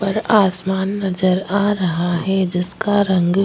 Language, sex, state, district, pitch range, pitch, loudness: Hindi, female, Chhattisgarh, Bastar, 185-200 Hz, 190 Hz, -18 LUFS